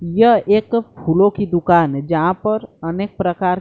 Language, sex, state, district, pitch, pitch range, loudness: Hindi, male, Bihar, Kaimur, 185 Hz, 170-210 Hz, -17 LUFS